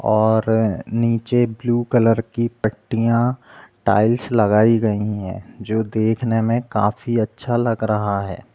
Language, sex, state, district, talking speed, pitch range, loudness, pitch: Hindi, male, Chhattisgarh, Rajnandgaon, 125 wpm, 110-115 Hz, -19 LUFS, 110 Hz